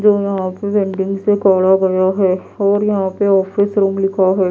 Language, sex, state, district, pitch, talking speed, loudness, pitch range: Hindi, female, Bihar, Kaimur, 195 Hz, 200 wpm, -15 LUFS, 190-200 Hz